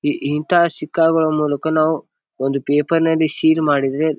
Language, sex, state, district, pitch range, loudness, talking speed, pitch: Kannada, male, Karnataka, Bijapur, 145-160 Hz, -17 LUFS, 130 wpm, 155 Hz